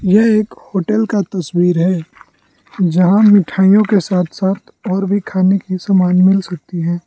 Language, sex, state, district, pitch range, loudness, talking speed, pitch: Hindi, male, Arunachal Pradesh, Lower Dibang Valley, 180-200 Hz, -14 LUFS, 160 wpm, 190 Hz